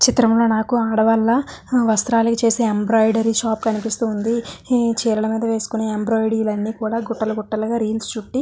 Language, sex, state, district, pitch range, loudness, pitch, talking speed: Telugu, female, Andhra Pradesh, Visakhapatnam, 220-230 Hz, -19 LUFS, 225 Hz, 170 wpm